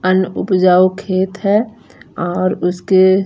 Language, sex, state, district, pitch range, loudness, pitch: Hindi, female, Punjab, Fazilka, 185-195 Hz, -15 LUFS, 185 Hz